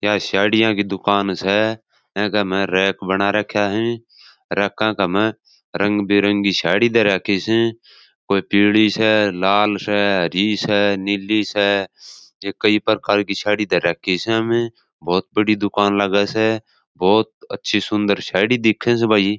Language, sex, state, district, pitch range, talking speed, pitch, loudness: Marwari, male, Rajasthan, Churu, 100-110 Hz, 150 wpm, 105 Hz, -18 LUFS